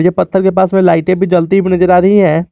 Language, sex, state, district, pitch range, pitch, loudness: Hindi, male, Jharkhand, Garhwa, 180-190 Hz, 185 Hz, -10 LUFS